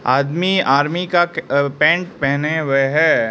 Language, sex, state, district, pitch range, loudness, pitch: Hindi, male, Arunachal Pradesh, Lower Dibang Valley, 140-175 Hz, -16 LUFS, 150 Hz